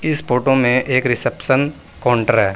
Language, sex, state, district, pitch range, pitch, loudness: Hindi, male, Uttar Pradesh, Saharanpur, 120-135 Hz, 130 Hz, -17 LUFS